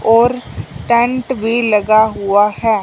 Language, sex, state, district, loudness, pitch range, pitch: Hindi, male, Punjab, Fazilka, -13 LUFS, 210-240 Hz, 225 Hz